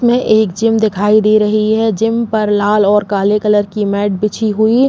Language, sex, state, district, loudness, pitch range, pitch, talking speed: Hindi, female, Uttar Pradesh, Muzaffarnagar, -13 LUFS, 205-220 Hz, 215 Hz, 220 wpm